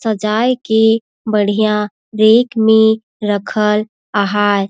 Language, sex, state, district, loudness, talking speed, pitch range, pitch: Surgujia, female, Chhattisgarh, Sarguja, -14 LUFS, 90 wpm, 210-220 Hz, 215 Hz